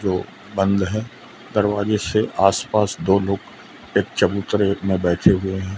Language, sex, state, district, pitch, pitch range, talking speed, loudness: Hindi, male, Madhya Pradesh, Umaria, 100 Hz, 95-105 Hz, 145 wpm, -20 LUFS